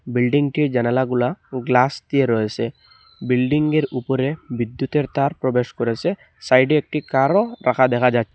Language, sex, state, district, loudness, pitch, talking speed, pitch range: Bengali, male, Assam, Hailakandi, -20 LUFS, 130 Hz, 120 wpm, 125-145 Hz